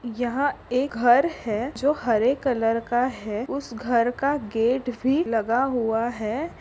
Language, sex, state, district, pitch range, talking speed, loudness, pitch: Hindi, female, Maharashtra, Pune, 230-270 Hz, 145 wpm, -24 LUFS, 245 Hz